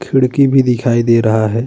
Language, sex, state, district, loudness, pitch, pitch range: Hindi, male, Uttar Pradesh, Budaun, -12 LUFS, 120 Hz, 115-135 Hz